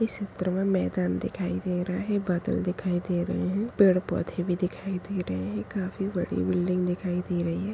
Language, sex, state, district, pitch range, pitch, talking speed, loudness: Kumaoni, female, Uttarakhand, Tehri Garhwal, 175-195 Hz, 180 Hz, 210 wpm, -28 LUFS